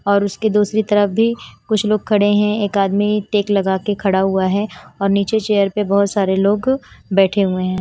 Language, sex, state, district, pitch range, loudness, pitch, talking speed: Hindi, female, Himachal Pradesh, Shimla, 195-210 Hz, -17 LUFS, 205 Hz, 205 wpm